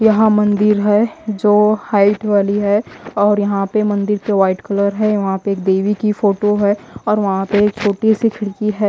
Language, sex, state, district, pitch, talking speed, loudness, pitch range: Hindi, female, Haryana, Jhajjar, 205 Hz, 200 wpm, -15 LUFS, 200-210 Hz